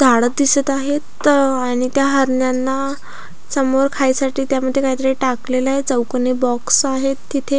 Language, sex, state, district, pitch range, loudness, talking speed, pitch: Marathi, female, Maharashtra, Pune, 255-275 Hz, -17 LUFS, 125 wpm, 270 Hz